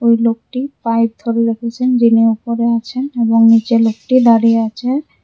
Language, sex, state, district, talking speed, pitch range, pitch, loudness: Bengali, female, Tripura, West Tripura, 150 wpm, 230-245 Hz, 230 Hz, -14 LUFS